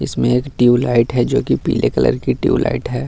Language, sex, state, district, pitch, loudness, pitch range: Hindi, male, Bihar, Gaya, 125 Hz, -16 LUFS, 120-125 Hz